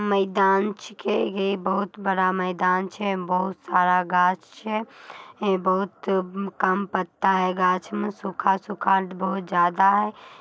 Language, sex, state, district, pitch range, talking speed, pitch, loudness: Magahi, female, Bihar, Samastipur, 185-200 Hz, 125 wpm, 195 Hz, -23 LUFS